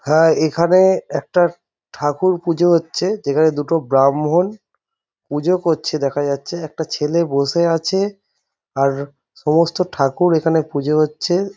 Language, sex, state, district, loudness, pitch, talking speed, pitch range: Bengali, male, West Bengal, Jhargram, -17 LUFS, 160 Hz, 120 wpm, 145-175 Hz